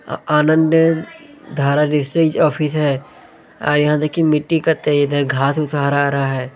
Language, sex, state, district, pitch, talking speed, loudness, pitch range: Hindi, male, Bihar, Jamui, 150 Hz, 130 wpm, -16 LUFS, 145-160 Hz